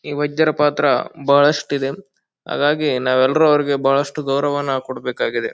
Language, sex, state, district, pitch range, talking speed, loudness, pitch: Kannada, male, Karnataka, Bijapur, 135-150 Hz, 130 wpm, -18 LUFS, 145 Hz